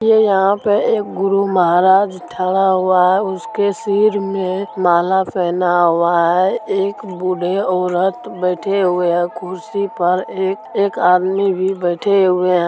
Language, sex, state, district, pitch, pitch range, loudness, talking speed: Maithili, female, Bihar, Supaul, 185 Hz, 180-200 Hz, -16 LUFS, 135 wpm